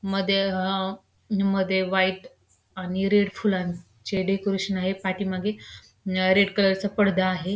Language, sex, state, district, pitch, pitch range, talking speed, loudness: Marathi, female, Maharashtra, Pune, 195 Hz, 190-195 Hz, 135 wpm, -24 LUFS